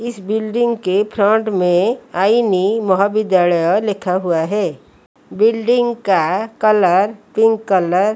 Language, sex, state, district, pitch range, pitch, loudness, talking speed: Hindi, female, Odisha, Malkangiri, 190-220 Hz, 210 Hz, -16 LUFS, 125 wpm